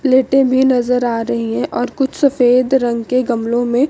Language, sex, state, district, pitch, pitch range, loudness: Hindi, female, Chandigarh, Chandigarh, 250 Hz, 235-265 Hz, -15 LUFS